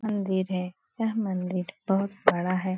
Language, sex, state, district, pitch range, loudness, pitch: Hindi, female, Uttar Pradesh, Etah, 185-200 Hz, -28 LUFS, 190 Hz